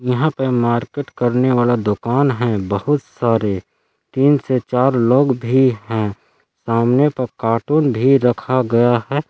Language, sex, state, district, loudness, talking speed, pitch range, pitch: Hindi, male, Jharkhand, Palamu, -17 LUFS, 140 wpm, 115-135 Hz, 125 Hz